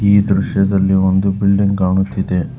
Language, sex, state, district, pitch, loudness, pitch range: Kannada, male, Karnataka, Bangalore, 100 Hz, -15 LUFS, 95-100 Hz